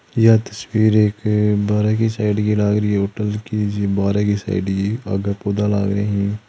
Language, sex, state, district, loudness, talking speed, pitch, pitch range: Hindi, male, Rajasthan, Churu, -18 LUFS, 100 wpm, 105 Hz, 100-105 Hz